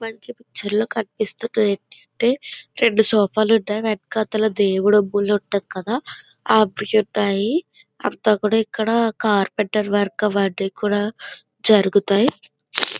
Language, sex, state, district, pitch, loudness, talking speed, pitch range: Telugu, female, Andhra Pradesh, Visakhapatnam, 215 Hz, -20 LUFS, 95 wpm, 205-225 Hz